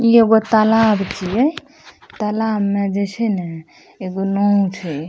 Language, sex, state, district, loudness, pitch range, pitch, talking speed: Maithili, female, Bihar, Madhepura, -17 LUFS, 190-220 Hz, 205 Hz, 155 wpm